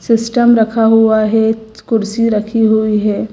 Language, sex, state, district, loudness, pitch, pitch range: Hindi, female, Gujarat, Gandhinagar, -12 LUFS, 220 Hz, 220-225 Hz